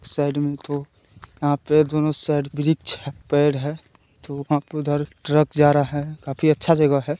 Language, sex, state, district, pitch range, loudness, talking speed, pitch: Hindi, male, Bihar, Jamui, 140-150 Hz, -21 LUFS, 200 wpm, 145 Hz